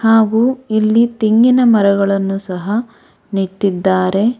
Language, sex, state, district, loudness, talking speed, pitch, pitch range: Kannada, female, Karnataka, Bangalore, -14 LUFS, 80 wpm, 215 Hz, 195-230 Hz